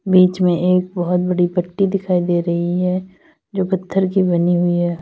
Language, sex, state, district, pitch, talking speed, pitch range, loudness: Hindi, female, Uttar Pradesh, Lalitpur, 180 Hz, 190 wpm, 175-185 Hz, -18 LUFS